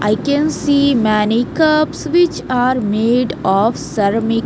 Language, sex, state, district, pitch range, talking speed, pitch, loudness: English, female, Haryana, Jhajjar, 215-285 Hz, 150 wpm, 245 Hz, -15 LUFS